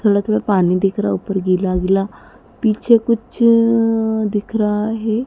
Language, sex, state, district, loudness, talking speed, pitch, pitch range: Hindi, female, Madhya Pradesh, Dhar, -17 LUFS, 150 wpm, 215 Hz, 195-225 Hz